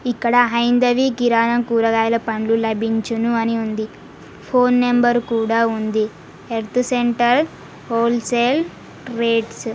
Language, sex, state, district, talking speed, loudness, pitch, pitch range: Telugu, female, Telangana, Karimnagar, 105 wpm, -18 LUFS, 235 Hz, 225-245 Hz